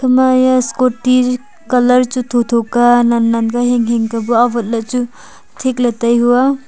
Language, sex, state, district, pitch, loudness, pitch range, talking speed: Wancho, female, Arunachal Pradesh, Longding, 245 Hz, -13 LUFS, 235-255 Hz, 190 wpm